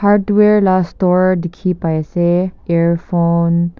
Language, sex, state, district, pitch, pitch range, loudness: Nagamese, female, Nagaland, Kohima, 175 Hz, 170-185 Hz, -14 LUFS